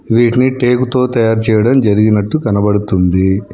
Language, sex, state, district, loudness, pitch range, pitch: Telugu, male, Telangana, Hyderabad, -12 LUFS, 105-125 Hz, 110 Hz